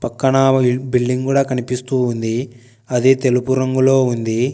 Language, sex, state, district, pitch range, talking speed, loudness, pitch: Telugu, female, Telangana, Hyderabad, 125-130 Hz, 120 wpm, -17 LUFS, 125 Hz